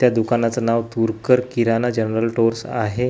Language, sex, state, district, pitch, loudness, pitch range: Marathi, male, Maharashtra, Gondia, 115 Hz, -19 LUFS, 115-120 Hz